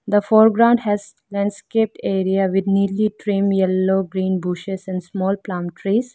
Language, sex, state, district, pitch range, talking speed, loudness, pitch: English, female, Arunachal Pradesh, Lower Dibang Valley, 190-210 Hz, 145 wpm, -19 LUFS, 195 Hz